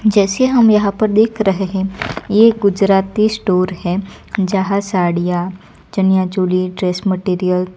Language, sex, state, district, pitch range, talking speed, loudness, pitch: Hindi, female, Gujarat, Gandhinagar, 185-210 Hz, 140 wpm, -15 LUFS, 195 Hz